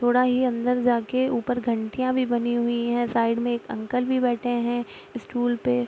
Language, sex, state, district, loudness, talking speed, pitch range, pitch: Hindi, female, Bihar, Araria, -24 LUFS, 205 wpm, 235-250 Hz, 240 Hz